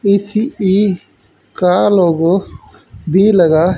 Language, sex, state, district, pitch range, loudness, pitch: Hindi, male, Haryana, Jhajjar, 175-200 Hz, -13 LUFS, 190 Hz